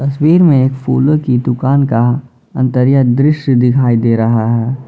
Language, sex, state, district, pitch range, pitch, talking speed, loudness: Hindi, male, Jharkhand, Ranchi, 120-140 Hz, 130 Hz, 160 wpm, -12 LUFS